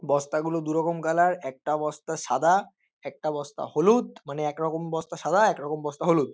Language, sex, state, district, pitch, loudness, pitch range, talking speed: Bengali, male, West Bengal, North 24 Parganas, 160 Hz, -26 LUFS, 150-165 Hz, 180 wpm